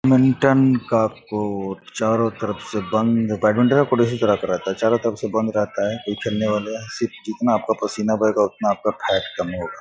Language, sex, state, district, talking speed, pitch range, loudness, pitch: Hindi, male, Bihar, Gopalganj, 140 wpm, 105-115 Hz, -20 LUFS, 110 Hz